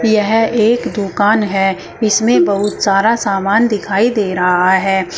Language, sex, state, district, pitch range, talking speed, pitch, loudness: Hindi, female, Uttar Pradesh, Shamli, 195-220 Hz, 140 wpm, 205 Hz, -13 LUFS